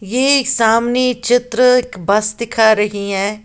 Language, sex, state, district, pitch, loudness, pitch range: Hindi, female, Uttar Pradesh, Lalitpur, 230 Hz, -14 LUFS, 210-250 Hz